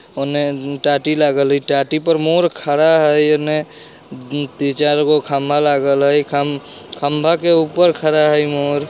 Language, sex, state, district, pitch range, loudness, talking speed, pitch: Bajjika, male, Bihar, Vaishali, 140-155 Hz, -15 LUFS, 160 wpm, 145 Hz